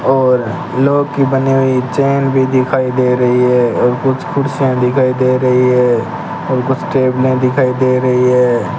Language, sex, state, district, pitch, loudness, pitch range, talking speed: Hindi, male, Rajasthan, Bikaner, 130 Hz, -13 LUFS, 125-135 Hz, 170 wpm